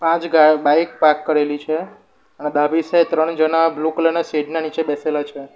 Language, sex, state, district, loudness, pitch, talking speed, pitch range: Gujarati, male, Gujarat, Valsad, -18 LUFS, 155 Hz, 205 wpm, 150-165 Hz